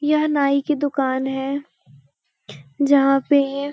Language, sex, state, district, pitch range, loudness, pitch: Hindi, female, Uttarakhand, Uttarkashi, 265-285 Hz, -19 LUFS, 275 Hz